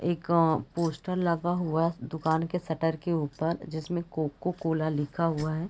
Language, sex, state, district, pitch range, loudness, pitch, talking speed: Hindi, female, Bihar, Sitamarhi, 160-170 Hz, -29 LUFS, 165 Hz, 190 wpm